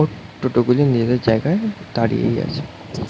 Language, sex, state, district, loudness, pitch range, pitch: Bengali, male, West Bengal, North 24 Parganas, -19 LUFS, 115-155 Hz, 125 Hz